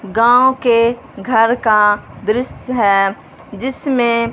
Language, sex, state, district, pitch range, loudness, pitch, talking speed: Hindi, female, Punjab, Fazilka, 210-250 Hz, -15 LUFS, 230 Hz, 95 wpm